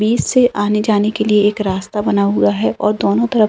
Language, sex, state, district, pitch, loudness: Hindi, female, Uttarakhand, Uttarkashi, 205 Hz, -15 LUFS